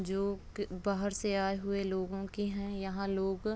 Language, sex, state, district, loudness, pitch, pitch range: Hindi, male, Bihar, Purnia, -35 LUFS, 195 Hz, 195-200 Hz